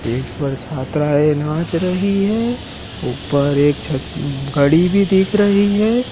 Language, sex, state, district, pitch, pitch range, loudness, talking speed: Hindi, male, Madhya Pradesh, Dhar, 155 Hz, 140-200 Hz, -17 LUFS, 135 wpm